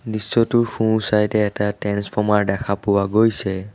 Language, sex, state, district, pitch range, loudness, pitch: Assamese, male, Assam, Sonitpur, 100-110 Hz, -19 LUFS, 105 Hz